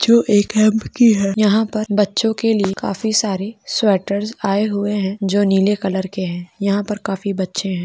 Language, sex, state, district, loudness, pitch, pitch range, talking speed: Hindi, male, Rajasthan, Churu, -18 LUFS, 205 Hz, 195-215 Hz, 160 wpm